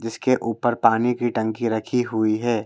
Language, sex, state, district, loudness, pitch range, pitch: Hindi, male, Madhya Pradesh, Bhopal, -22 LUFS, 110-120 Hz, 115 Hz